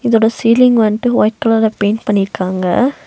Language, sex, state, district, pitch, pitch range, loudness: Tamil, female, Tamil Nadu, Nilgiris, 225 Hz, 205-235 Hz, -13 LUFS